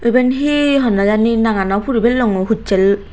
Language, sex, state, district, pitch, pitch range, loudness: Chakma, female, Tripura, Unakoti, 225 Hz, 200-250 Hz, -15 LUFS